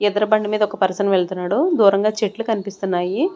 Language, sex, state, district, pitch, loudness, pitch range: Telugu, female, Andhra Pradesh, Sri Satya Sai, 205 Hz, -19 LUFS, 195-215 Hz